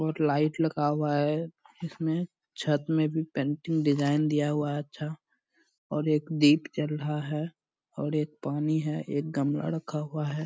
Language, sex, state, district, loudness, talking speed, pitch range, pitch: Hindi, male, Bihar, Purnia, -29 LUFS, 190 wpm, 150-155 Hz, 150 Hz